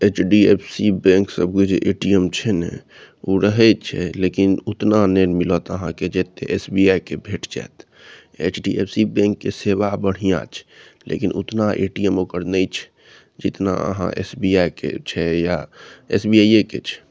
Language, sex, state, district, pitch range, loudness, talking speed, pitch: Maithili, male, Bihar, Saharsa, 90-100 Hz, -19 LUFS, 155 wpm, 95 Hz